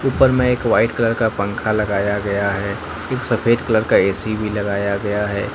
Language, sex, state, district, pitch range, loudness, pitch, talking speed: Hindi, male, Jharkhand, Ranchi, 100-115 Hz, -18 LUFS, 105 Hz, 205 wpm